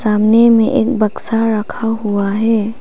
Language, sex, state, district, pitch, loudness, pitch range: Hindi, female, Arunachal Pradesh, Papum Pare, 225 Hz, -14 LUFS, 210-230 Hz